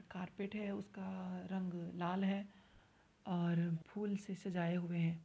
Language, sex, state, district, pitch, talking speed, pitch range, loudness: Hindi, female, Uttar Pradesh, Varanasi, 185 Hz, 135 wpm, 175-195 Hz, -42 LUFS